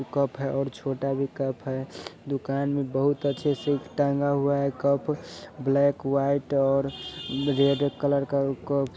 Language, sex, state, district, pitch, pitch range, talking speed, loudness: Hindi, male, Bihar, Sitamarhi, 140 Hz, 135-140 Hz, 180 wpm, -26 LUFS